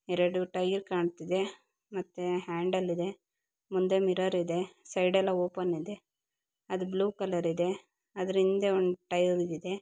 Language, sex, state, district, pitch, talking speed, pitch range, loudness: Kannada, female, Karnataka, Bijapur, 185 Hz, 135 wpm, 180-190 Hz, -31 LUFS